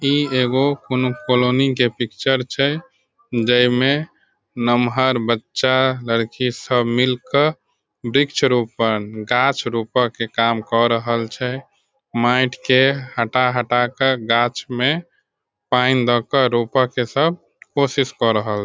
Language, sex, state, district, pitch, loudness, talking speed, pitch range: Maithili, male, Bihar, Sitamarhi, 125 Hz, -18 LUFS, 130 wpm, 120-135 Hz